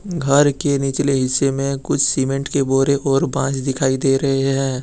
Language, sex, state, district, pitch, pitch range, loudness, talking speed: Hindi, male, Jharkhand, Deoghar, 135 Hz, 135-140 Hz, -18 LUFS, 185 wpm